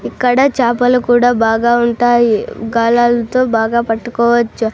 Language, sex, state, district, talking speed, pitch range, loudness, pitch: Telugu, female, Andhra Pradesh, Sri Satya Sai, 100 wpm, 230-245 Hz, -13 LUFS, 240 Hz